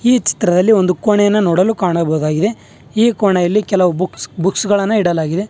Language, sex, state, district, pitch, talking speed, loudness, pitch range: Kannada, male, Karnataka, Bangalore, 190 Hz, 140 wpm, -14 LUFS, 175-210 Hz